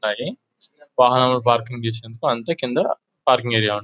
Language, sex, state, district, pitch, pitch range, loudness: Telugu, male, Telangana, Nalgonda, 125 Hz, 115-130 Hz, -20 LUFS